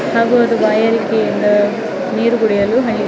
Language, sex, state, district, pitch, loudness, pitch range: Kannada, female, Karnataka, Dakshina Kannada, 225 Hz, -14 LUFS, 215-235 Hz